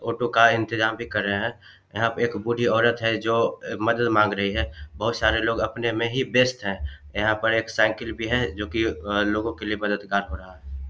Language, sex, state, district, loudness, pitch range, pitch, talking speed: Hindi, male, Bihar, Samastipur, -23 LUFS, 100-115 Hz, 110 Hz, 225 wpm